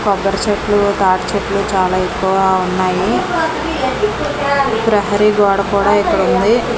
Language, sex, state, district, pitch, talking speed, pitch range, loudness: Telugu, female, Andhra Pradesh, Manyam, 205 Hz, 105 wpm, 190-230 Hz, -14 LUFS